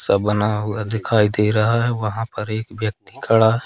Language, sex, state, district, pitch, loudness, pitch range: Hindi, male, Madhya Pradesh, Katni, 110 Hz, -20 LUFS, 105-110 Hz